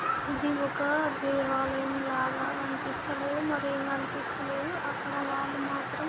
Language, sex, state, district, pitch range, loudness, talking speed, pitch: Telugu, female, Andhra Pradesh, Guntur, 275-290 Hz, -31 LUFS, 100 wpm, 280 Hz